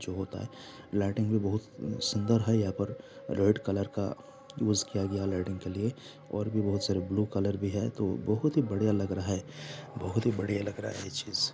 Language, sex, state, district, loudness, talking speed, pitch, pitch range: Hindi, male, Jharkhand, Sahebganj, -31 LUFS, 205 wpm, 100 Hz, 100-110 Hz